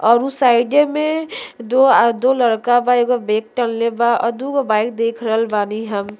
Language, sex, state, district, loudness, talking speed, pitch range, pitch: Bhojpuri, female, Uttar Pradesh, Deoria, -16 LUFS, 195 wpm, 225-255 Hz, 235 Hz